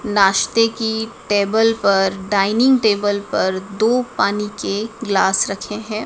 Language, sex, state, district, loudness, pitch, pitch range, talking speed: Hindi, female, Madhya Pradesh, Dhar, -18 LUFS, 210 Hz, 200-225 Hz, 130 wpm